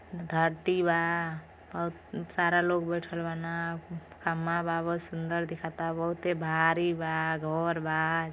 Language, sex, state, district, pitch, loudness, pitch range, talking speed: Bhojpuri, female, Uttar Pradesh, Gorakhpur, 165 Hz, -30 LUFS, 165-170 Hz, 130 wpm